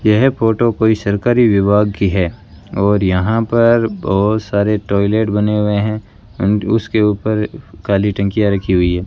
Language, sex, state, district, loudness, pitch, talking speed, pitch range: Hindi, male, Rajasthan, Bikaner, -15 LUFS, 105 Hz, 160 wpm, 100-110 Hz